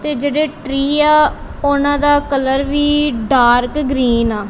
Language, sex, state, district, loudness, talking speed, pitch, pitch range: Punjabi, female, Punjab, Kapurthala, -14 LUFS, 145 wpm, 285 Hz, 265-295 Hz